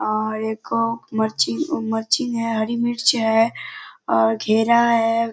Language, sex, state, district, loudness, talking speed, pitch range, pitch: Hindi, female, Bihar, Kishanganj, -20 LUFS, 145 wpm, 220-230 Hz, 225 Hz